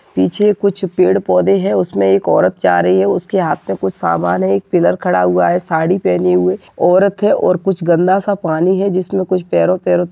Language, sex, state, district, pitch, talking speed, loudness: Hindi, male, Jharkhand, Sahebganj, 180 Hz, 220 wpm, -14 LUFS